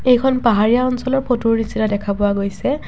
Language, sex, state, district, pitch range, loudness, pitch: Assamese, female, Assam, Kamrup Metropolitan, 210-255 Hz, -17 LUFS, 230 Hz